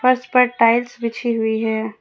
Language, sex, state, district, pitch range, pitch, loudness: Hindi, female, Jharkhand, Ranchi, 225-245 Hz, 235 Hz, -18 LUFS